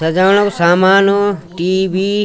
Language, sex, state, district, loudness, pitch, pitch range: Garhwali, male, Uttarakhand, Tehri Garhwal, -13 LUFS, 190 Hz, 180-200 Hz